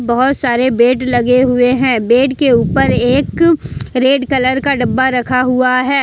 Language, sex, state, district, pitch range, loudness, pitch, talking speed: Hindi, female, Jharkhand, Ranchi, 245-265 Hz, -12 LUFS, 255 Hz, 170 wpm